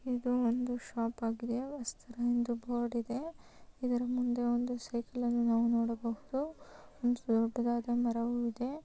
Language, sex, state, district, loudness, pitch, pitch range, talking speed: Kannada, female, Karnataka, Chamarajanagar, -34 LUFS, 240 Hz, 235-245 Hz, 120 wpm